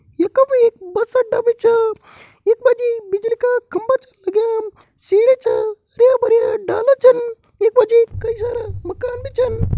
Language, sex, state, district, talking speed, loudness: Hindi, male, Uttarakhand, Tehri Garhwal, 180 wpm, -17 LUFS